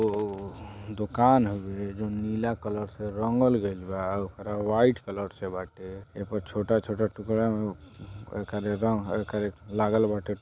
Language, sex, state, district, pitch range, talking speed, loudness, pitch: Bhojpuri, male, Uttar Pradesh, Deoria, 100-110 Hz, 130 wpm, -28 LUFS, 105 Hz